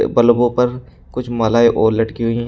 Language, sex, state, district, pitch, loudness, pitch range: Hindi, male, Uttar Pradesh, Shamli, 120 Hz, -15 LUFS, 115-120 Hz